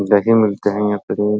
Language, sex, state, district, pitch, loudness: Hindi, male, Bihar, Jahanabad, 105 Hz, -16 LUFS